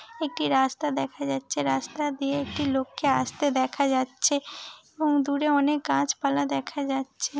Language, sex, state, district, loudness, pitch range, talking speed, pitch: Bengali, female, West Bengal, Purulia, -26 LUFS, 260-295 Hz, 140 wpm, 280 Hz